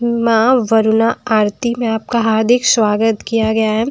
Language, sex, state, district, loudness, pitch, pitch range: Hindi, female, Bihar, Patna, -14 LUFS, 225 Hz, 220-235 Hz